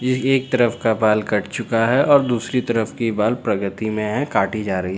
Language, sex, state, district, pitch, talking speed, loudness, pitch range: Hindi, male, Bihar, Katihar, 115 Hz, 230 wpm, -19 LUFS, 105-125 Hz